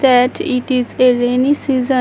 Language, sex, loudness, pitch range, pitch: English, female, -15 LUFS, 250-265 Hz, 255 Hz